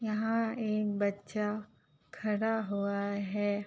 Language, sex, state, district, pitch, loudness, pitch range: Hindi, female, Uttar Pradesh, Ghazipur, 210 Hz, -33 LUFS, 200-220 Hz